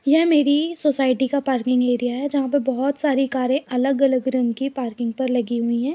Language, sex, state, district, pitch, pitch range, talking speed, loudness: Hindi, female, Uttar Pradesh, Budaun, 265 Hz, 250-280 Hz, 200 wpm, -21 LUFS